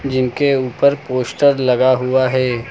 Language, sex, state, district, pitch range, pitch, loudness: Hindi, male, Uttar Pradesh, Lucknow, 125-140 Hz, 130 Hz, -16 LUFS